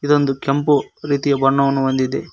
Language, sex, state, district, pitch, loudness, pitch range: Kannada, male, Karnataka, Koppal, 140 Hz, -18 LUFS, 135-145 Hz